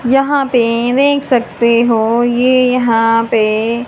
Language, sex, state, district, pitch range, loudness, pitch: Hindi, male, Haryana, Jhajjar, 230-255 Hz, -12 LUFS, 240 Hz